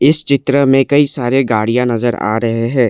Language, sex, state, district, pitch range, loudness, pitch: Hindi, male, Assam, Kamrup Metropolitan, 115-140 Hz, -13 LUFS, 125 Hz